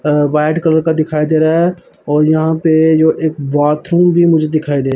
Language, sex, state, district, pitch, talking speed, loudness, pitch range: Hindi, male, Punjab, Pathankot, 155 Hz, 220 wpm, -13 LUFS, 150-160 Hz